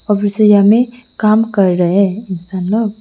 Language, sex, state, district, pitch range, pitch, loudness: Hindi, female, Arunachal Pradesh, Lower Dibang Valley, 190-220 Hz, 205 Hz, -13 LUFS